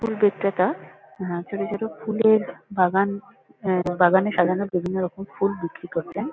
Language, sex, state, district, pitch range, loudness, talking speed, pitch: Bengali, female, West Bengal, North 24 Parganas, 180-210 Hz, -23 LUFS, 135 wpm, 195 Hz